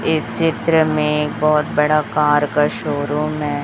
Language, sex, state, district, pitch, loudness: Hindi, male, Chhattisgarh, Raipur, 145 Hz, -17 LUFS